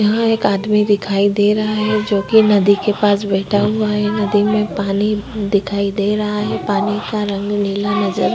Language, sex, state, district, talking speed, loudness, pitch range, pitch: Hindi, female, Uttar Pradesh, Jyotiba Phule Nagar, 195 wpm, -16 LUFS, 200-210 Hz, 205 Hz